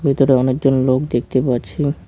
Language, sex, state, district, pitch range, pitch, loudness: Bengali, male, West Bengal, Cooch Behar, 130-140 Hz, 130 Hz, -17 LUFS